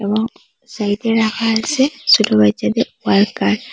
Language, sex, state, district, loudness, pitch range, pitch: Bengali, female, Assam, Hailakandi, -16 LUFS, 205-230 Hz, 220 Hz